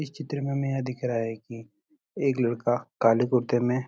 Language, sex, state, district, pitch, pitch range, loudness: Hindi, male, Uttarakhand, Uttarkashi, 125 Hz, 120-140 Hz, -27 LUFS